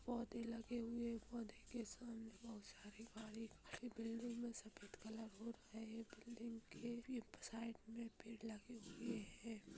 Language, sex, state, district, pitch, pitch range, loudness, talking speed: Hindi, female, Jharkhand, Jamtara, 230 Hz, 225-235 Hz, -52 LUFS, 170 wpm